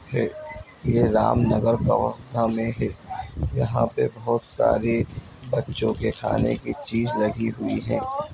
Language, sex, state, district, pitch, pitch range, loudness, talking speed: Hindi, female, Chhattisgarh, Kabirdham, 115 Hz, 115-125 Hz, -24 LUFS, 135 wpm